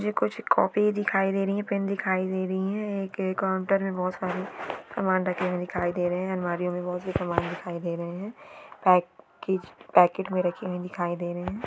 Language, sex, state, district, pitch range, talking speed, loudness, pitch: Hindi, female, Maharashtra, Dhule, 180-195 Hz, 235 wpm, -27 LUFS, 185 Hz